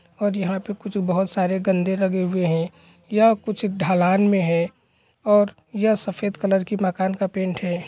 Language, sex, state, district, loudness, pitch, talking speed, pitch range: Hindi, male, Bihar, East Champaran, -22 LUFS, 190 Hz, 180 wpm, 185-205 Hz